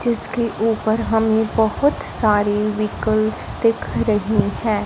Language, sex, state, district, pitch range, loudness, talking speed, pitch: Hindi, female, Punjab, Fazilka, 215-225 Hz, -19 LUFS, 110 wpm, 220 Hz